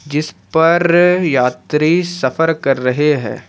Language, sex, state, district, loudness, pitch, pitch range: Hindi, male, Jharkhand, Ranchi, -14 LUFS, 150 Hz, 130-165 Hz